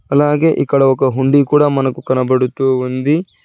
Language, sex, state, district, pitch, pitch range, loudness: Telugu, male, Telangana, Hyderabad, 135 Hz, 130-145 Hz, -14 LUFS